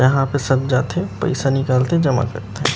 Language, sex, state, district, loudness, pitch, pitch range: Chhattisgarhi, male, Chhattisgarh, Rajnandgaon, -19 LUFS, 135 Hz, 130-145 Hz